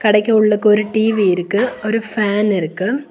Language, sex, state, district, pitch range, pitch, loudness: Tamil, female, Tamil Nadu, Kanyakumari, 205-220 Hz, 210 Hz, -16 LUFS